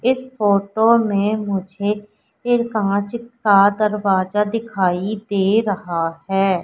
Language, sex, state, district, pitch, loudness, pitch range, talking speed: Hindi, female, Madhya Pradesh, Katni, 205 Hz, -19 LUFS, 195-220 Hz, 110 wpm